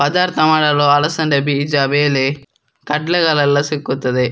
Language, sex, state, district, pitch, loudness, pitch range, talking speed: Kannada, male, Karnataka, Dakshina Kannada, 145 Hz, -15 LUFS, 140-155 Hz, 95 wpm